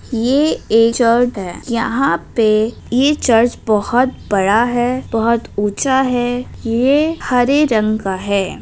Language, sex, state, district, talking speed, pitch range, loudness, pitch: Hindi, female, Bihar, Begusarai, 130 wpm, 215-255 Hz, -15 LUFS, 235 Hz